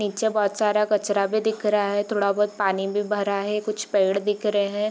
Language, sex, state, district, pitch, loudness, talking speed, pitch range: Hindi, female, Bihar, Gopalganj, 205 Hz, -23 LUFS, 270 wpm, 200-210 Hz